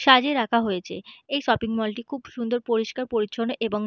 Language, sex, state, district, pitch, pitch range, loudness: Bengali, female, West Bengal, Purulia, 235 Hz, 225-255 Hz, -24 LUFS